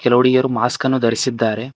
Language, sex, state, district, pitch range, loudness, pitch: Kannada, male, Karnataka, Koppal, 115-130 Hz, -17 LUFS, 125 Hz